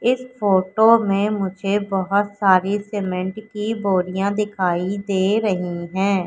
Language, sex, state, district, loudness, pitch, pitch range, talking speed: Hindi, female, Madhya Pradesh, Katni, -20 LUFS, 200 Hz, 190-210 Hz, 125 wpm